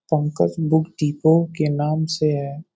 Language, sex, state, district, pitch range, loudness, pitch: Hindi, male, Uttar Pradesh, Deoria, 150-160 Hz, -20 LUFS, 155 Hz